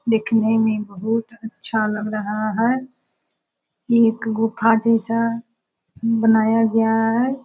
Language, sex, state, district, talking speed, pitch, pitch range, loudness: Hindi, female, Bihar, Araria, 105 wpm, 225 Hz, 220-230 Hz, -19 LUFS